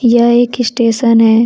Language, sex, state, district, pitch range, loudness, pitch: Hindi, female, Jharkhand, Deoghar, 230-240 Hz, -11 LUFS, 235 Hz